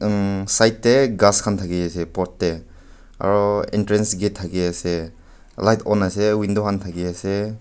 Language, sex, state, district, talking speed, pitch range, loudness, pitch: Nagamese, male, Nagaland, Kohima, 140 wpm, 90-105 Hz, -20 LUFS, 100 Hz